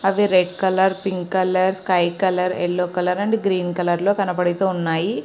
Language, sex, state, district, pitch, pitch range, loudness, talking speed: Telugu, female, Andhra Pradesh, Srikakulam, 185 Hz, 180-190 Hz, -20 LUFS, 150 wpm